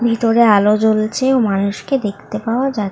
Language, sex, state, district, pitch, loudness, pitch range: Bengali, female, West Bengal, North 24 Parganas, 220 Hz, -15 LUFS, 210-240 Hz